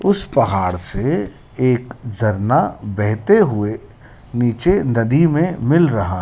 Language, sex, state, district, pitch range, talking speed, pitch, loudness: Hindi, male, Madhya Pradesh, Dhar, 105-150 Hz, 115 wpm, 120 Hz, -17 LUFS